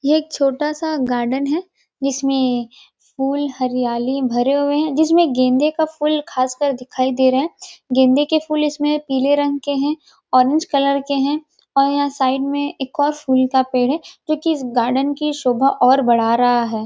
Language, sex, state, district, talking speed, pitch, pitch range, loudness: Hindi, female, Chhattisgarh, Rajnandgaon, 190 wpm, 275 Hz, 260-300 Hz, -18 LUFS